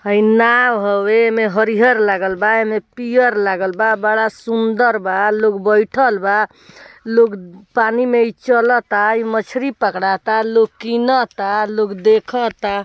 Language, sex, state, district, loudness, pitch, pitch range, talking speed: Bhojpuri, female, Bihar, East Champaran, -15 LUFS, 220 Hz, 205-235 Hz, 135 wpm